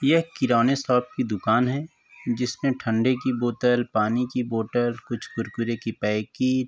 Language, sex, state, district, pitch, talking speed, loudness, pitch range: Hindi, male, Uttar Pradesh, Varanasi, 120 Hz, 160 wpm, -24 LUFS, 115-130 Hz